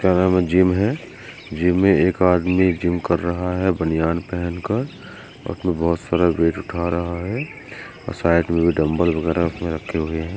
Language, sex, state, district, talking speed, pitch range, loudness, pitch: Hindi, male, Maharashtra, Solapur, 155 wpm, 85-90 Hz, -20 LUFS, 85 Hz